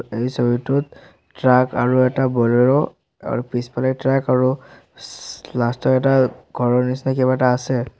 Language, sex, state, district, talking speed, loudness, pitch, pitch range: Assamese, male, Assam, Sonitpur, 140 wpm, -19 LUFS, 125 Hz, 120-130 Hz